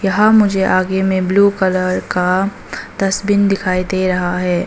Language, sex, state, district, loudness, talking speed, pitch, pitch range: Hindi, female, Arunachal Pradesh, Papum Pare, -15 LUFS, 155 wpm, 190 Hz, 185-195 Hz